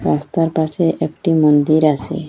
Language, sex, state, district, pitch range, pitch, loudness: Bengali, female, Assam, Hailakandi, 150-165 Hz, 155 Hz, -16 LUFS